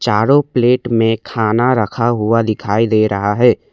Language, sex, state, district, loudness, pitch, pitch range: Hindi, male, Assam, Kamrup Metropolitan, -14 LUFS, 115 Hz, 110-120 Hz